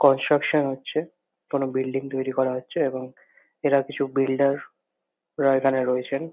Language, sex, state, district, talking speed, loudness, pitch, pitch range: Bengali, male, West Bengal, Kolkata, 135 wpm, -24 LUFS, 135 Hz, 130-140 Hz